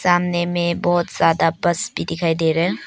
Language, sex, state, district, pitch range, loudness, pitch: Hindi, female, Arunachal Pradesh, Papum Pare, 165-175 Hz, -19 LUFS, 175 Hz